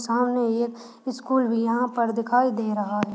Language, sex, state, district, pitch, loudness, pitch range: Hindi, female, Uttar Pradesh, Deoria, 235 Hz, -24 LUFS, 230-245 Hz